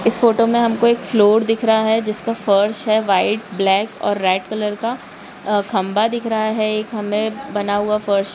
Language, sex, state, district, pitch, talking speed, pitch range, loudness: Hindi, female, Bihar, Araria, 215 Hz, 195 wpm, 205-225 Hz, -18 LUFS